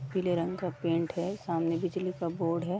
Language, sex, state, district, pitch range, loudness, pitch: Hindi, female, Uttar Pradesh, Varanasi, 165-185 Hz, -32 LUFS, 175 Hz